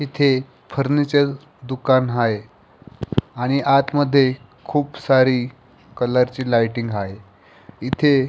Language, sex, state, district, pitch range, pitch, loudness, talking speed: Marathi, male, Maharashtra, Pune, 120-140 Hz, 130 Hz, -19 LUFS, 100 wpm